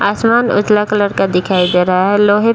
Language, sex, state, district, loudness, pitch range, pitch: Hindi, male, Bihar, Jahanabad, -13 LUFS, 185-210 Hz, 205 Hz